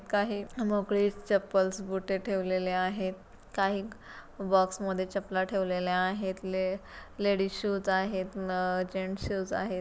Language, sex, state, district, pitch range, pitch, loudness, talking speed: Marathi, female, Maharashtra, Pune, 185-200 Hz, 190 Hz, -31 LUFS, 120 wpm